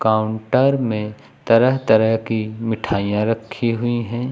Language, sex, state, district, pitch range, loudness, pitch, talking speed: Hindi, male, Uttar Pradesh, Lucknow, 110-120 Hz, -19 LUFS, 115 Hz, 125 wpm